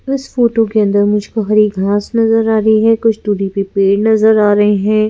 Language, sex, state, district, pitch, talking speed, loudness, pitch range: Hindi, female, Madhya Pradesh, Bhopal, 215 Hz, 225 wpm, -12 LUFS, 205-225 Hz